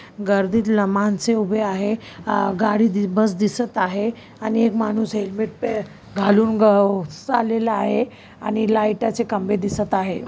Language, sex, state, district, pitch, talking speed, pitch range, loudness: Marathi, female, Maharashtra, Chandrapur, 215 Hz, 130 wpm, 205-225 Hz, -20 LUFS